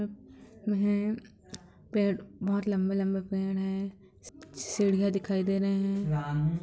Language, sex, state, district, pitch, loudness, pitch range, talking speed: Hindi, female, Chhattisgarh, Bilaspur, 195 Hz, -30 LUFS, 195-205 Hz, 110 wpm